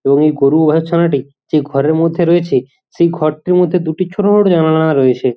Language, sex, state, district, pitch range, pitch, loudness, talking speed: Bengali, male, West Bengal, Jhargram, 140-175 Hz, 160 Hz, -13 LUFS, 165 wpm